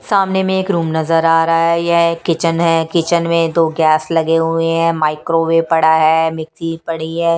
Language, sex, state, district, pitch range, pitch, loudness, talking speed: Hindi, female, Punjab, Kapurthala, 165-170 Hz, 165 Hz, -14 LUFS, 205 wpm